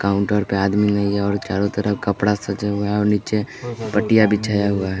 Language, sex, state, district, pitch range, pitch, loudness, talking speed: Hindi, male, Bihar, West Champaran, 100-105 Hz, 105 Hz, -20 LUFS, 215 wpm